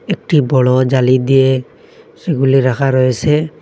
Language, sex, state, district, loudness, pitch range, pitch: Bengali, male, Assam, Hailakandi, -13 LUFS, 130-145 Hz, 135 Hz